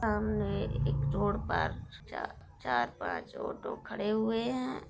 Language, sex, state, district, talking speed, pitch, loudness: Hindi, female, Bihar, Darbhanga, 120 wpm, 215 Hz, -34 LUFS